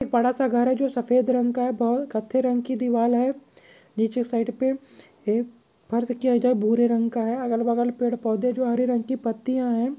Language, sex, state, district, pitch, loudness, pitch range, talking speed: Hindi, male, Maharashtra, Chandrapur, 245 Hz, -24 LUFS, 235-255 Hz, 215 wpm